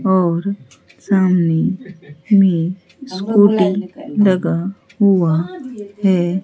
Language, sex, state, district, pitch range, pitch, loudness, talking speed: Hindi, female, Bihar, Katihar, 170-200 Hz, 190 Hz, -16 LUFS, 65 wpm